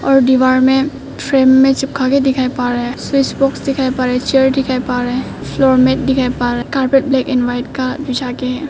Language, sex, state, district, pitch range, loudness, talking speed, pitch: Hindi, female, Arunachal Pradesh, Papum Pare, 255-270 Hz, -14 LUFS, 240 wpm, 260 Hz